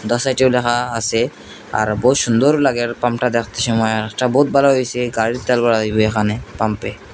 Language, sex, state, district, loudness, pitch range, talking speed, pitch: Bengali, male, Assam, Hailakandi, -17 LUFS, 110-125 Hz, 175 wpm, 120 Hz